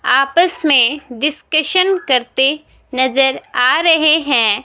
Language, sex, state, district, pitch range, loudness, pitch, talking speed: Hindi, female, Himachal Pradesh, Shimla, 265-315 Hz, -13 LUFS, 290 Hz, 105 wpm